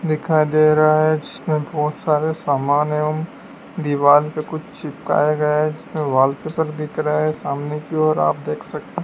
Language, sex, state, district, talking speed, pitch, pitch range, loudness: Hindi, male, Madhya Pradesh, Dhar, 170 wpm, 150 Hz, 145-155 Hz, -19 LUFS